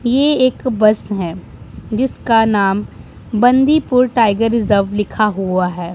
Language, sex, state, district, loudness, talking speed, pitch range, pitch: Hindi, male, Punjab, Pathankot, -15 LUFS, 120 wpm, 200-250 Hz, 220 Hz